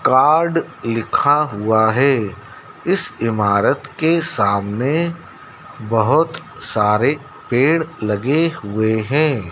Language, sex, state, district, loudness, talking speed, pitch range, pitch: Hindi, male, Madhya Pradesh, Dhar, -17 LUFS, 90 wpm, 105-155 Hz, 120 Hz